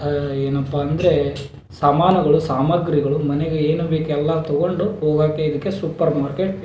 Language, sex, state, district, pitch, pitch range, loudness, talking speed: Kannada, male, Karnataka, Belgaum, 150 Hz, 145-165 Hz, -19 LUFS, 125 wpm